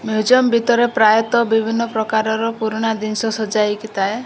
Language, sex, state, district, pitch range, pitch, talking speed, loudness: Odia, female, Odisha, Malkangiri, 220-230 Hz, 220 Hz, 125 wpm, -17 LUFS